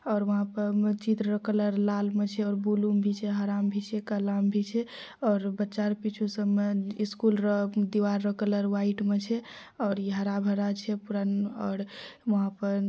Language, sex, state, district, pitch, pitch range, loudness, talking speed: Maithili, female, Bihar, Purnia, 205 Hz, 200-210 Hz, -29 LUFS, 200 wpm